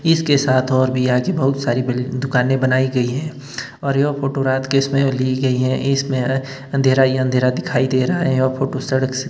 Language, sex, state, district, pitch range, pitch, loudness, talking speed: Hindi, male, Himachal Pradesh, Shimla, 130-135 Hz, 130 Hz, -18 LUFS, 220 wpm